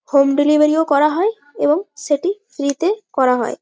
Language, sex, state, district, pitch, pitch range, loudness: Bengali, female, West Bengal, Jalpaiguri, 300 Hz, 285-370 Hz, -17 LUFS